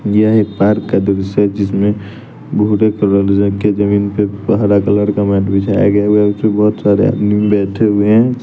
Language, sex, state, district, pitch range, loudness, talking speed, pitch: Hindi, male, Bihar, West Champaran, 100-105 Hz, -13 LUFS, 185 wpm, 105 Hz